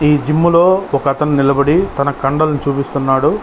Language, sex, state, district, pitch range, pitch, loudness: Telugu, male, Andhra Pradesh, Chittoor, 140-155 Hz, 145 Hz, -14 LUFS